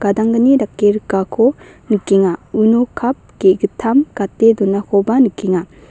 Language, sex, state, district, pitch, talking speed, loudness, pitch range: Garo, female, Meghalaya, West Garo Hills, 210 Hz, 100 wpm, -15 LUFS, 195-240 Hz